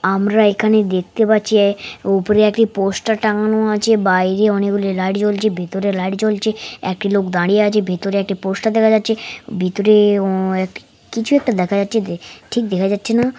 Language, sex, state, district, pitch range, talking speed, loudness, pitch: Bengali, female, West Bengal, Paschim Medinipur, 195-215 Hz, 165 wpm, -16 LUFS, 205 Hz